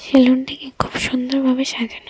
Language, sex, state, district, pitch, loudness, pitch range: Bengali, female, Tripura, West Tripura, 260 Hz, -18 LUFS, 255-270 Hz